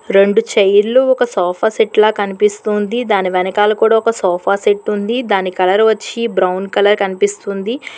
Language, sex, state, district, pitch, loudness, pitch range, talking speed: Telugu, female, Telangana, Hyderabad, 210 Hz, -14 LUFS, 195-225 Hz, 145 wpm